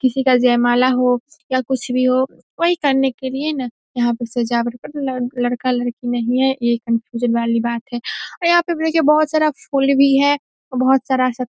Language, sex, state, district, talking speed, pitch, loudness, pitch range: Hindi, female, Bihar, Saharsa, 210 wpm, 255 Hz, -18 LUFS, 245-275 Hz